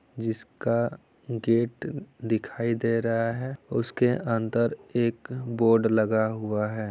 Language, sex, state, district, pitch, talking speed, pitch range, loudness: Hindi, male, Bihar, Saran, 115 Hz, 115 wpm, 110-120 Hz, -27 LUFS